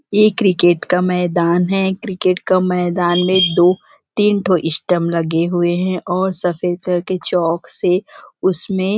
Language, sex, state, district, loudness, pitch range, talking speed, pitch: Hindi, female, Chhattisgarh, Rajnandgaon, -16 LUFS, 175-190 Hz, 155 wpm, 180 Hz